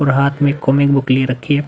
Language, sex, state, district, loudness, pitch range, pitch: Hindi, male, Uttar Pradesh, Budaun, -15 LUFS, 135-145 Hz, 140 Hz